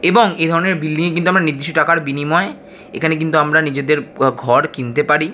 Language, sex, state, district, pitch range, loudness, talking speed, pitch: Bengali, male, West Bengal, Kolkata, 145-170 Hz, -16 LUFS, 155 wpm, 160 Hz